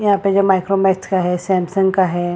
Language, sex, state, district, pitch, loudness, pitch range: Hindi, female, Chhattisgarh, Bilaspur, 190 Hz, -16 LUFS, 180-195 Hz